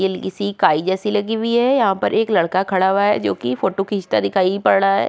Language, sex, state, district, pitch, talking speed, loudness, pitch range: Hindi, female, Uttarakhand, Tehri Garhwal, 195 Hz, 245 wpm, -18 LUFS, 185-205 Hz